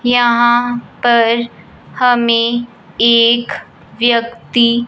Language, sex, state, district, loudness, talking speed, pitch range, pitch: Hindi, male, Punjab, Fazilka, -13 LUFS, 60 wpm, 235-240 Hz, 235 Hz